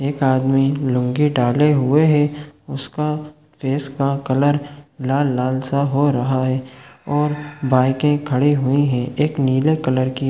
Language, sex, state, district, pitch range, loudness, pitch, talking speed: Hindi, male, Chhattisgarh, Raigarh, 130-145 Hz, -18 LUFS, 140 Hz, 145 wpm